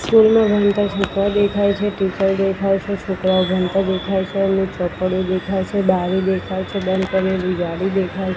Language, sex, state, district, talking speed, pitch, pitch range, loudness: Gujarati, female, Gujarat, Gandhinagar, 170 wpm, 190 Hz, 185-200 Hz, -18 LUFS